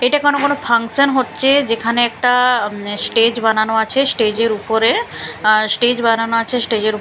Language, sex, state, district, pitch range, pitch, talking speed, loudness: Bengali, female, Bihar, Katihar, 220-250 Hz, 230 Hz, 160 wpm, -15 LUFS